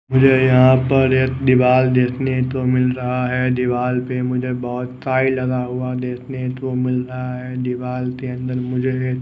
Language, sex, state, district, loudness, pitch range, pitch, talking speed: Hindi, male, Odisha, Nuapada, -18 LUFS, 125-130 Hz, 125 Hz, 170 wpm